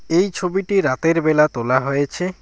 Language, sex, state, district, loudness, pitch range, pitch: Bengali, male, West Bengal, Alipurduar, -18 LUFS, 140-185 Hz, 165 Hz